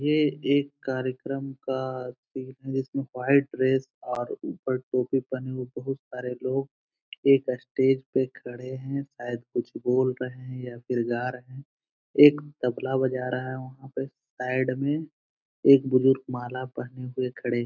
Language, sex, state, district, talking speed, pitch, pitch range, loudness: Hindi, male, Bihar, Araria, 165 wpm, 130 Hz, 125-135 Hz, -27 LUFS